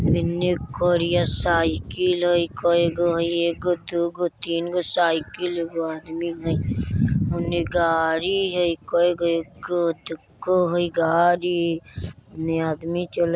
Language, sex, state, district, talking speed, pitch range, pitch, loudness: Bajjika, male, Bihar, Vaishali, 135 wpm, 165-175 Hz, 170 Hz, -22 LUFS